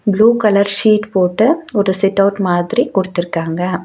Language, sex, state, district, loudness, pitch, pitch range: Tamil, female, Tamil Nadu, Nilgiris, -14 LUFS, 200 Hz, 185-220 Hz